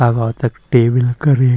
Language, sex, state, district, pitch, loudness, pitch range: Garhwali, male, Uttarakhand, Uttarkashi, 120 Hz, -15 LUFS, 120-130 Hz